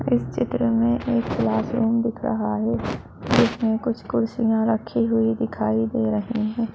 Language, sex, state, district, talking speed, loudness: Hindi, female, Uttar Pradesh, Budaun, 150 wpm, -22 LUFS